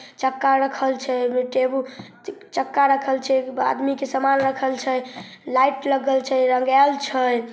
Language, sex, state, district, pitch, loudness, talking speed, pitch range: Maithili, female, Bihar, Samastipur, 265 Hz, -21 LUFS, 150 wpm, 260-275 Hz